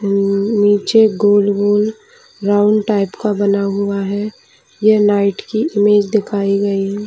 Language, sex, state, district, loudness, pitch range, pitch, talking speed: Hindi, female, Chhattisgarh, Bastar, -15 LUFS, 200-210 Hz, 205 Hz, 145 wpm